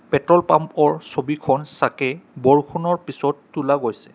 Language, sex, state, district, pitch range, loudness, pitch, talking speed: Assamese, male, Assam, Kamrup Metropolitan, 140-160 Hz, -20 LUFS, 150 Hz, 115 wpm